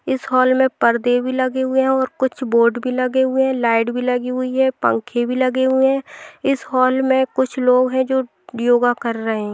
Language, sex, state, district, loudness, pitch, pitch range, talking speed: Hindi, female, Bihar, Lakhisarai, -18 LUFS, 255 Hz, 245-260 Hz, 225 wpm